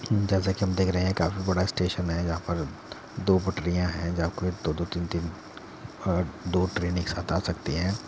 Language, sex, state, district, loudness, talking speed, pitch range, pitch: Hindi, male, Uttar Pradesh, Muzaffarnagar, -28 LUFS, 215 wpm, 85-95 Hz, 90 Hz